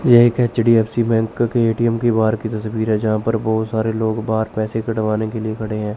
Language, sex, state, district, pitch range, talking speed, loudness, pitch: Hindi, male, Chandigarh, Chandigarh, 110-115 Hz, 230 wpm, -18 LUFS, 110 Hz